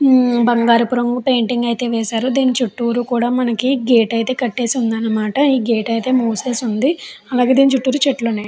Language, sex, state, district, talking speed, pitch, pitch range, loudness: Telugu, female, Andhra Pradesh, Chittoor, 165 wpm, 245 Hz, 230-255 Hz, -16 LUFS